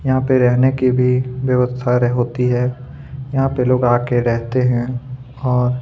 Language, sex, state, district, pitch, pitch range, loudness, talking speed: Hindi, male, Chhattisgarh, Kabirdham, 125 Hz, 125-130 Hz, -17 LUFS, 155 wpm